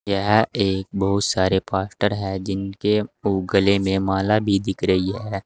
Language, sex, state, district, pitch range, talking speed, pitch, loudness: Hindi, male, Uttar Pradesh, Saharanpur, 95-105 Hz, 165 wpm, 100 Hz, -21 LUFS